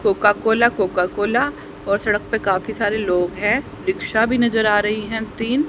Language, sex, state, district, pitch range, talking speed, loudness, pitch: Hindi, female, Haryana, Charkhi Dadri, 200-230 Hz, 190 wpm, -19 LUFS, 215 Hz